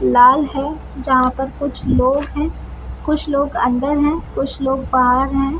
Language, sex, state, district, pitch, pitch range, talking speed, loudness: Hindi, female, Bihar, Samastipur, 275 Hz, 260-290 Hz, 160 wpm, -17 LUFS